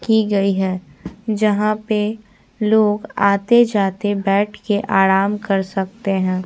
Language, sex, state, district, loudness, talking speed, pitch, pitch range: Hindi, female, Bihar, Patna, -18 LUFS, 120 wpm, 205 Hz, 195-215 Hz